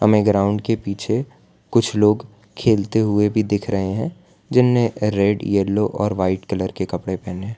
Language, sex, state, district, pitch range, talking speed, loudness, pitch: Hindi, male, Gujarat, Valsad, 100-110 Hz, 165 wpm, -20 LUFS, 105 Hz